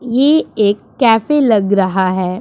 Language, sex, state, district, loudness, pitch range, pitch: Hindi, female, Punjab, Pathankot, -13 LUFS, 195-255 Hz, 215 Hz